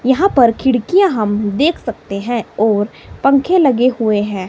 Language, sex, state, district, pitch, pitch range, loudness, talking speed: Hindi, female, Himachal Pradesh, Shimla, 240 Hz, 210-275 Hz, -14 LUFS, 160 wpm